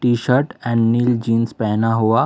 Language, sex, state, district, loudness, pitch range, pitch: Hindi, male, Delhi, New Delhi, -18 LUFS, 115-120 Hz, 115 Hz